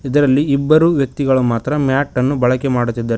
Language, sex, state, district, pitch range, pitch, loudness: Kannada, male, Karnataka, Koppal, 125-145 Hz, 135 Hz, -15 LUFS